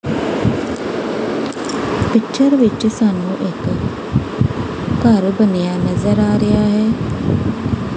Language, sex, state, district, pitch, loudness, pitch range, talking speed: Punjabi, female, Punjab, Kapurthala, 215 Hz, -17 LUFS, 205-225 Hz, 75 wpm